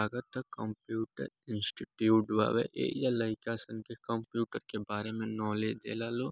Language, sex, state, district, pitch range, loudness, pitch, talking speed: Bhojpuri, male, Bihar, Gopalganj, 110-115 Hz, -34 LUFS, 110 Hz, 150 wpm